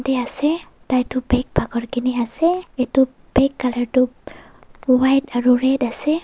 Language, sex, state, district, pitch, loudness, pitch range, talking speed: Nagamese, female, Nagaland, Dimapur, 255 Hz, -19 LUFS, 250-270 Hz, 145 wpm